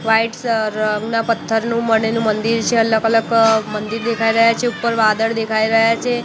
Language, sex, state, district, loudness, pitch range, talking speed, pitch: Gujarati, female, Gujarat, Gandhinagar, -17 LUFS, 220-230 Hz, 165 wpm, 225 Hz